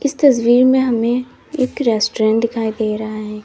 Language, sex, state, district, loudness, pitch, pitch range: Hindi, female, Uttar Pradesh, Lalitpur, -16 LUFS, 235 Hz, 220-255 Hz